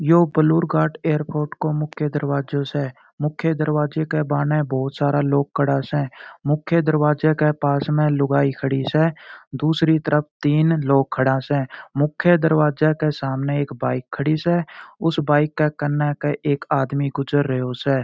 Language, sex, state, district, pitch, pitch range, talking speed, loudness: Marwari, male, Rajasthan, Churu, 150 Hz, 140-155 Hz, 160 wpm, -20 LUFS